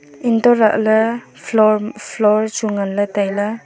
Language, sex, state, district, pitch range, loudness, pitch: Wancho, female, Arunachal Pradesh, Longding, 205-225 Hz, -16 LUFS, 215 Hz